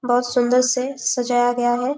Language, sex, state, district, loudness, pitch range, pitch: Hindi, female, Chhattisgarh, Bastar, -19 LUFS, 245-255 Hz, 245 Hz